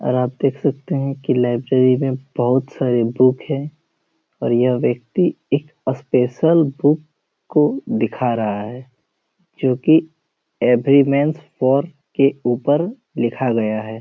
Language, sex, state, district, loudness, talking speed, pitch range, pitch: Hindi, male, Jharkhand, Jamtara, -18 LUFS, 135 wpm, 125-150 Hz, 135 Hz